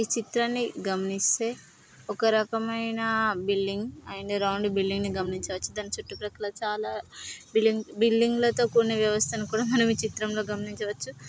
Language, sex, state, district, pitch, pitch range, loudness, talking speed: Telugu, female, Andhra Pradesh, Srikakulam, 215 Hz, 200-225 Hz, -27 LUFS, 135 wpm